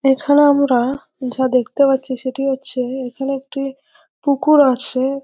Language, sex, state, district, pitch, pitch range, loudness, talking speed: Bengali, female, West Bengal, North 24 Parganas, 270 Hz, 260-280 Hz, -17 LUFS, 125 wpm